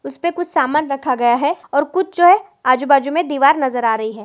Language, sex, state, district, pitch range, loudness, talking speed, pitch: Hindi, female, Chhattisgarh, Bilaspur, 255-340 Hz, -16 LUFS, 270 wpm, 280 Hz